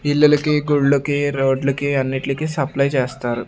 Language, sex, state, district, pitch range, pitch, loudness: Telugu, male, Andhra Pradesh, Sri Satya Sai, 135-145 Hz, 140 Hz, -18 LUFS